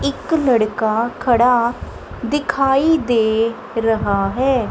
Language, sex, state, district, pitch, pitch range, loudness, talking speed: Punjabi, female, Punjab, Kapurthala, 240 Hz, 225-270 Hz, -17 LUFS, 90 wpm